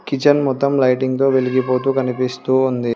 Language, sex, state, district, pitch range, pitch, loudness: Telugu, female, Telangana, Hyderabad, 130-135 Hz, 130 Hz, -17 LUFS